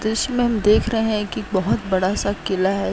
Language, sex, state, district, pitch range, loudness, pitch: Hindi, female, Uttar Pradesh, Jalaun, 190-220 Hz, -20 LUFS, 210 Hz